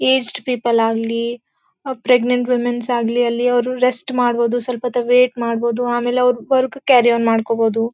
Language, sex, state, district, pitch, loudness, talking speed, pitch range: Kannada, female, Karnataka, Bellary, 245 Hz, -17 LUFS, 150 wpm, 235-250 Hz